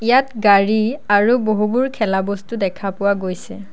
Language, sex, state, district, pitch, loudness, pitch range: Assamese, female, Assam, Sonitpur, 205 Hz, -17 LUFS, 200-230 Hz